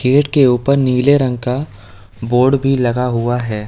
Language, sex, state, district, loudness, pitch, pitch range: Hindi, male, Uttar Pradesh, Lalitpur, -14 LUFS, 125 Hz, 120-135 Hz